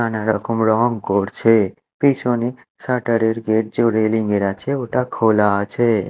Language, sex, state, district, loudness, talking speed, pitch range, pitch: Bengali, male, Odisha, Malkangiri, -18 LUFS, 140 wpm, 110-120 Hz, 115 Hz